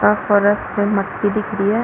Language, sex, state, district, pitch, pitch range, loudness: Hindi, female, Chhattisgarh, Balrampur, 205 Hz, 200-210 Hz, -18 LUFS